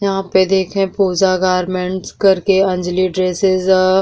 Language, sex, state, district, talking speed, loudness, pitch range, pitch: Bhojpuri, female, Uttar Pradesh, Deoria, 150 wpm, -15 LUFS, 185-195 Hz, 190 Hz